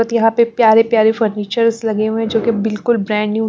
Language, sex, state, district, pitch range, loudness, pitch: Hindi, female, Punjab, Pathankot, 220-230 Hz, -15 LUFS, 225 Hz